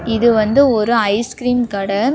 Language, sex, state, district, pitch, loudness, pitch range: Tamil, female, Tamil Nadu, Namakkal, 230 Hz, -15 LUFS, 215-245 Hz